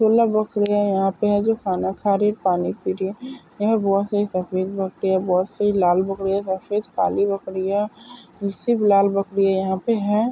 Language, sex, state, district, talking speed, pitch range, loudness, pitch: Hindi, female, Maharashtra, Sindhudurg, 180 wpm, 190-210 Hz, -21 LUFS, 200 Hz